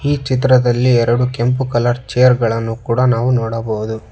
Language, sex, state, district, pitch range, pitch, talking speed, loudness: Kannada, male, Karnataka, Bangalore, 115-125 Hz, 120 Hz, 145 wpm, -15 LUFS